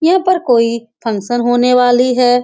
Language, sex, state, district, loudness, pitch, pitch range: Hindi, female, Bihar, Saran, -13 LUFS, 245 Hz, 235-250 Hz